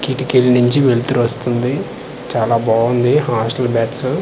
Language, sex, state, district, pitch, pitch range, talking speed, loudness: Telugu, male, Andhra Pradesh, Manyam, 125 Hz, 115-130 Hz, 130 wpm, -15 LUFS